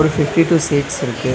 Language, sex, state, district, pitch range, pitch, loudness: Tamil, male, Tamil Nadu, Nilgiris, 140-155 Hz, 150 Hz, -16 LUFS